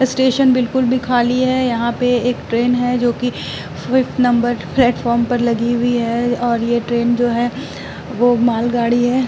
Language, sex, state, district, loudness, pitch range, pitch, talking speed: Hindi, female, Uttar Pradesh, Muzaffarnagar, -16 LUFS, 235-250 Hz, 245 Hz, 170 wpm